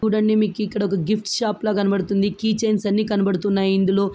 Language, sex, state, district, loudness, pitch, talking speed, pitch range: Telugu, female, Andhra Pradesh, Guntur, -20 LUFS, 205 Hz, 160 wpm, 200-215 Hz